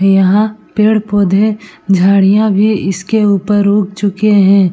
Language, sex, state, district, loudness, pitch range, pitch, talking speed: Hindi, female, Uttar Pradesh, Etah, -11 LUFS, 195-215 Hz, 205 Hz, 115 wpm